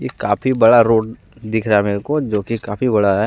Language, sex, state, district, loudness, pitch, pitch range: Hindi, male, Jharkhand, Deoghar, -16 LUFS, 110 Hz, 105-115 Hz